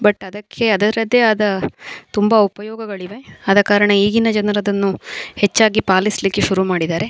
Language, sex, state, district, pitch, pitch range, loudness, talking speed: Kannada, female, Karnataka, Dakshina Kannada, 205 Hz, 195-220 Hz, -16 LUFS, 110 wpm